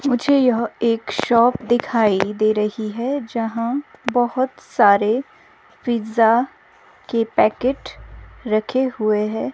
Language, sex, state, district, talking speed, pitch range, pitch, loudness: Hindi, female, Himachal Pradesh, Shimla, 105 wpm, 220-260 Hz, 235 Hz, -19 LUFS